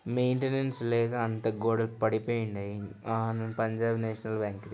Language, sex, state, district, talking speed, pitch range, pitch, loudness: Telugu, male, Andhra Pradesh, Anantapur, 125 wpm, 110-115 Hz, 115 Hz, -31 LUFS